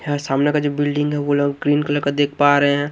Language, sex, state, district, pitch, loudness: Hindi, male, Haryana, Jhajjar, 145 Hz, -18 LUFS